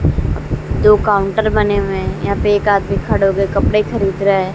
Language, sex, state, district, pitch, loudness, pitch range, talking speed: Hindi, female, Bihar, West Champaran, 200 Hz, -15 LUFS, 195-210 Hz, 210 wpm